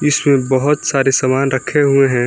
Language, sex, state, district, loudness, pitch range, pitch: Hindi, male, Jharkhand, Garhwa, -14 LUFS, 130-140 Hz, 135 Hz